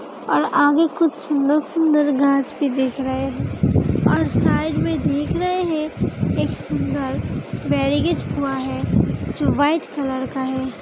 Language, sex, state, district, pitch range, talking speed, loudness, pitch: Hindi, female, Uttar Pradesh, Hamirpur, 265-305 Hz, 140 wpm, -20 LUFS, 285 Hz